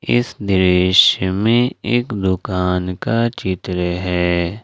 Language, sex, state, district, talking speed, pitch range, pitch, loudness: Hindi, male, Jharkhand, Ranchi, 105 wpm, 90-115 Hz, 95 Hz, -17 LUFS